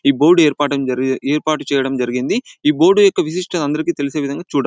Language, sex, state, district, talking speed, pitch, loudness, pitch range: Telugu, male, Andhra Pradesh, Anantapur, 180 wpm, 145 Hz, -16 LUFS, 140-170 Hz